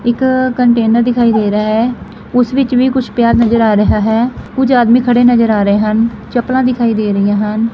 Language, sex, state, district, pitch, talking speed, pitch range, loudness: Punjabi, female, Punjab, Fazilka, 235 Hz, 210 wpm, 220-245 Hz, -12 LUFS